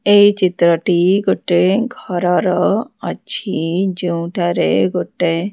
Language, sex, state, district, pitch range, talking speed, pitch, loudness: Odia, female, Odisha, Khordha, 175-195 Hz, 75 wpm, 180 Hz, -16 LUFS